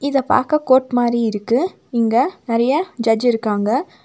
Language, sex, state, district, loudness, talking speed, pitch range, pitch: Tamil, female, Tamil Nadu, Nilgiris, -18 LUFS, 135 wpm, 230-270 Hz, 240 Hz